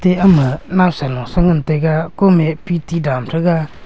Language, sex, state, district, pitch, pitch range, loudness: Wancho, male, Arunachal Pradesh, Longding, 165 Hz, 155-175 Hz, -15 LUFS